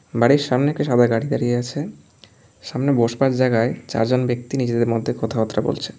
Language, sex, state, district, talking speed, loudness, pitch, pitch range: Bengali, male, West Bengal, Alipurduar, 160 wpm, -20 LUFS, 120 Hz, 115-130 Hz